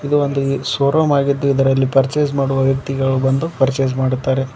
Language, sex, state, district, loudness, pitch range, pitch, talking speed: Kannada, male, Karnataka, Koppal, -17 LUFS, 135-140 Hz, 135 Hz, 155 wpm